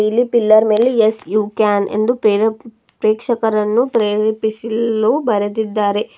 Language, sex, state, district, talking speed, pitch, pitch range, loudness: Kannada, female, Karnataka, Bidar, 105 wpm, 220 Hz, 215-230 Hz, -16 LUFS